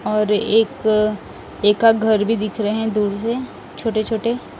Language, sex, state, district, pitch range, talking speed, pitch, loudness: Hindi, male, Odisha, Nuapada, 210-225 Hz, 170 wpm, 220 Hz, -19 LUFS